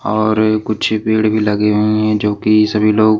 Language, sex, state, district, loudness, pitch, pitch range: Hindi, male, Maharashtra, Washim, -14 LUFS, 110 Hz, 105-110 Hz